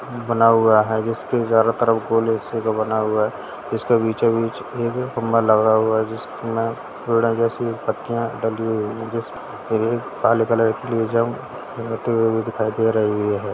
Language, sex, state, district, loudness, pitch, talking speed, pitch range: Hindi, male, Bihar, Sitamarhi, -20 LUFS, 115 Hz, 105 wpm, 110-115 Hz